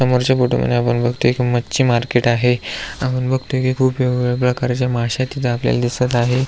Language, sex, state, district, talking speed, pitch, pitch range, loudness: Marathi, male, Maharashtra, Aurangabad, 185 wpm, 125 Hz, 120-130 Hz, -18 LUFS